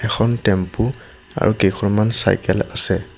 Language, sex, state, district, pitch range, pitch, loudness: Assamese, male, Assam, Sonitpur, 100-115 Hz, 105 Hz, -18 LUFS